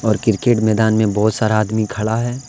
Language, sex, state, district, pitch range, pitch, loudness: Hindi, male, Jharkhand, Deoghar, 110-115 Hz, 110 Hz, -17 LUFS